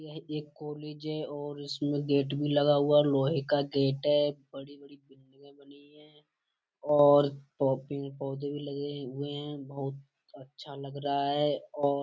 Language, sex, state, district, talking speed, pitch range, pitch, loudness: Hindi, male, Uttar Pradesh, Budaun, 160 wpm, 140-145 Hz, 145 Hz, -30 LUFS